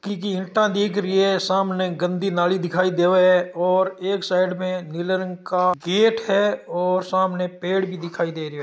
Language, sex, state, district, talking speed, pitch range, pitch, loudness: Marwari, male, Rajasthan, Nagaur, 195 wpm, 180-195 Hz, 185 Hz, -21 LUFS